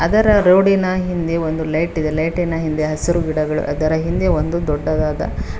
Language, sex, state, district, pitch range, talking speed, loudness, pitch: Kannada, female, Karnataka, Koppal, 155-175 Hz, 160 wpm, -17 LUFS, 160 Hz